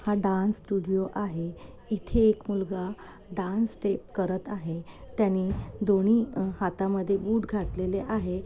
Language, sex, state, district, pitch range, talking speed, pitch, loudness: Marathi, female, Maharashtra, Nagpur, 190-210 Hz, 120 wpm, 195 Hz, -28 LUFS